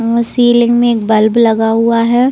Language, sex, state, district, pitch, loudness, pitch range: Hindi, female, Bihar, Saran, 230 Hz, -11 LUFS, 225-240 Hz